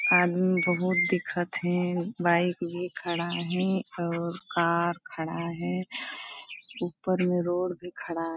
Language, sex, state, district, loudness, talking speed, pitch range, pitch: Hindi, female, Chhattisgarh, Balrampur, -28 LUFS, 130 wpm, 170-180 Hz, 175 Hz